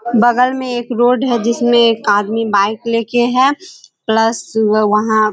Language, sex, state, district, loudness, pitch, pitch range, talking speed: Hindi, female, Bihar, Kishanganj, -14 LUFS, 230 Hz, 215-240 Hz, 170 wpm